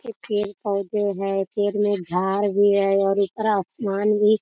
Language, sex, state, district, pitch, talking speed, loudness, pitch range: Hindi, female, Bihar, Sitamarhi, 205 Hz, 175 wpm, -22 LUFS, 195-210 Hz